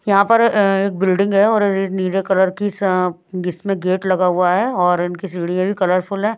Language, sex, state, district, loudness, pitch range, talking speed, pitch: Hindi, female, Maharashtra, Washim, -17 LUFS, 180-200 Hz, 205 wpm, 190 Hz